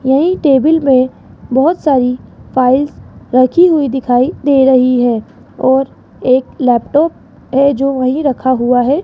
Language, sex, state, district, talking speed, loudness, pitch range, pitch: Hindi, female, Rajasthan, Jaipur, 140 wpm, -12 LUFS, 255-285 Hz, 265 Hz